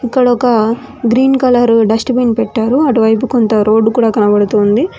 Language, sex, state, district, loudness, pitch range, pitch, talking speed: Telugu, female, Telangana, Mahabubabad, -11 LUFS, 220-250 Hz, 230 Hz, 145 wpm